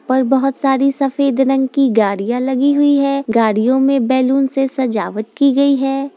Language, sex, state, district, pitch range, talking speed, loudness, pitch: Hindi, female, Bihar, Gopalganj, 255-275 Hz, 175 wpm, -15 LUFS, 270 Hz